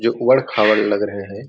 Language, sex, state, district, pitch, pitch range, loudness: Hindi, male, Chhattisgarh, Raigarh, 105 Hz, 105-120 Hz, -17 LUFS